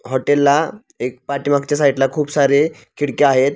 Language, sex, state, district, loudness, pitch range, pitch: Marathi, male, Maharashtra, Pune, -17 LUFS, 135-145 Hz, 140 Hz